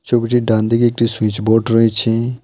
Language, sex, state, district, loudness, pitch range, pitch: Bengali, male, West Bengal, Alipurduar, -15 LUFS, 110-120 Hz, 115 Hz